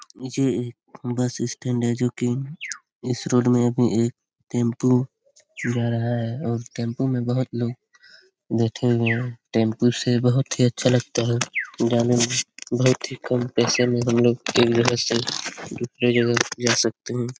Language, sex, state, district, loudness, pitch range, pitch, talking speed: Hindi, male, Bihar, Lakhisarai, -22 LUFS, 120-125 Hz, 120 Hz, 165 wpm